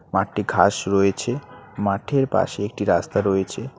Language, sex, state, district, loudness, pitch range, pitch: Bengali, male, West Bengal, Alipurduar, -22 LUFS, 100-120 Hz, 100 Hz